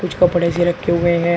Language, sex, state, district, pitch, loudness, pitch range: Hindi, male, Uttar Pradesh, Shamli, 175 Hz, -17 LUFS, 170-175 Hz